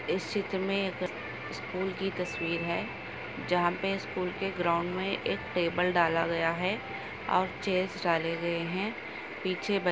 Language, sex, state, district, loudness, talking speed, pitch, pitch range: Hindi, female, Maharashtra, Chandrapur, -31 LUFS, 145 wpm, 180 Hz, 170-195 Hz